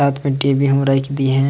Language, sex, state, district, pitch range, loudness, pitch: Sadri, male, Chhattisgarh, Jashpur, 135-140 Hz, -17 LUFS, 140 Hz